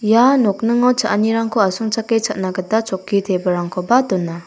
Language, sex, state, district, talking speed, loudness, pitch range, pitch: Garo, female, Meghalaya, South Garo Hills, 120 wpm, -17 LUFS, 185-225 Hz, 215 Hz